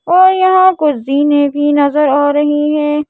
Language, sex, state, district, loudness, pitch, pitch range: Hindi, female, Madhya Pradesh, Bhopal, -11 LUFS, 295 Hz, 290-305 Hz